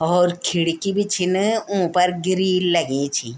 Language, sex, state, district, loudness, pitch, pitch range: Garhwali, female, Uttarakhand, Tehri Garhwal, -20 LUFS, 180 Hz, 170-190 Hz